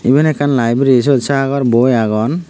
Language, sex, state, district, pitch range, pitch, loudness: Chakma, male, Tripura, Unakoti, 120-140 Hz, 135 Hz, -13 LUFS